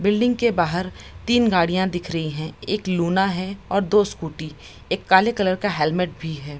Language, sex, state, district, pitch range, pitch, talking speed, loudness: Hindi, female, Bihar, Samastipur, 165-205 Hz, 185 Hz, 190 wpm, -21 LUFS